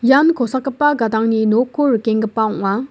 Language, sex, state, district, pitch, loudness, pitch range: Garo, female, Meghalaya, West Garo Hills, 235 Hz, -16 LUFS, 220-270 Hz